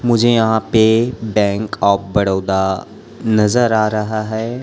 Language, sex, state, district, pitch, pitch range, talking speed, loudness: Hindi, male, Chhattisgarh, Raipur, 110 Hz, 100-115 Hz, 130 wpm, -16 LUFS